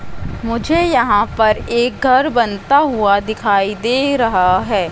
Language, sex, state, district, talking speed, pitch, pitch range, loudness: Hindi, female, Madhya Pradesh, Katni, 135 wpm, 230 Hz, 205-255 Hz, -15 LUFS